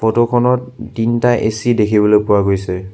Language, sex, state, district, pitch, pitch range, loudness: Assamese, male, Assam, Sonitpur, 110 Hz, 105-120 Hz, -14 LUFS